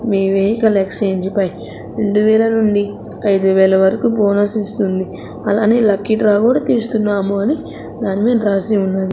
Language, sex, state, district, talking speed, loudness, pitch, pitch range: Telugu, female, Andhra Pradesh, Sri Satya Sai, 130 wpm, -15 LUFS, 205 Hz, 195-220 Hz